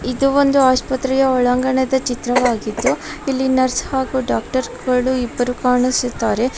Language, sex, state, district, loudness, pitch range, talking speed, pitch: Kannada, female, Karnataka, Mysore, -17 LUFS, 250-265 Hz, 100 wpm, 255 Hz